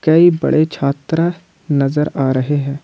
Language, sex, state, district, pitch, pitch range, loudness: Hindi, male, Jharkhand, Ranchi, 150 Hz, 140-165 Hz, -16 LUFS